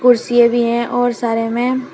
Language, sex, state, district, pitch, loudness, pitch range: Hindi, female, Uttar Pradesh, Shamli, 240 Hz, -15 LUFS, 235-245 Hz